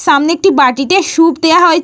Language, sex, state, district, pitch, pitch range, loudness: Bengali, female, Jharkhand, Jamtara, 330 Hz, 300-350 Hz, -10 LUFS